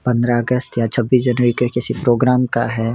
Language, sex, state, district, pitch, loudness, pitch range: Hindi, male, Rajasthan, Jaisalmer, 120 Hz, -17 LUFS, 120-125 Hz